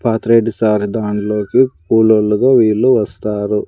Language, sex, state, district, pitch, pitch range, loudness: Telugu, male, Andhra Pradesh, Sri Satya Sai, 110 Hz, 105-115 Hz, -14 LUFS